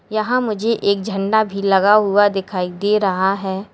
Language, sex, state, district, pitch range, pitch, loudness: Hindi, female, Uttar Pradesh, Lalitpur, 195-215 Hz, 200 Hz, -17 LUFS